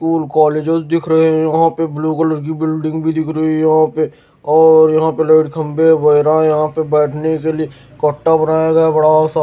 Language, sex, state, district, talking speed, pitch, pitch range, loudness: Hindi, male, Bihar, Patna, 220 wpm, 155 Hz, 155-160 Hz, -13 LUFS